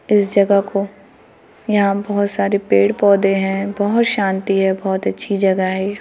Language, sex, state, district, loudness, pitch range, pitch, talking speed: Hindi, female, Bihar, Muzaffarpur, -17 LUFS, 195-205 Hz, 200 Hz, 180 wpm